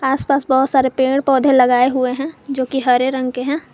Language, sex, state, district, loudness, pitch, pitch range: Hindi, female, Jharkhand, Garhwa, -16 LUFS, 265 Hz, 255-275 Hz